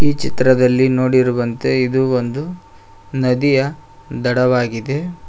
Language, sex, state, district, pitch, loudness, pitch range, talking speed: Kannada, male, Karnataka, Koppal, 130 Hz, -16 LUFS, 125-140 Hz, 80 wpm